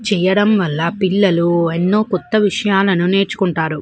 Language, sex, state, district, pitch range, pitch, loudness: Telugu, female, Andhra Pradesh, Visakhapatnam, 170-205 Hz, 190 Hz, -15 LUFS